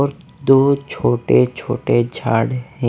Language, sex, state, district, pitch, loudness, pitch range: Hindi, male, Punjab, Fazilka, 130 Hz, -17 LUFS, 115-140 Hz